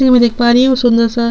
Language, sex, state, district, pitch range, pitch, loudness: Hindi, female, Chhattisgarh, Sukma, 235-250 Hz, 240 Hz, -11 LUFS